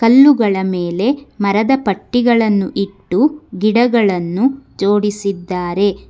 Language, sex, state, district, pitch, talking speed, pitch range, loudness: Kannada, female, Karnataka, Bangalore, 205 Hz, 70 wpm, 195-245 Hz, -15 LUFS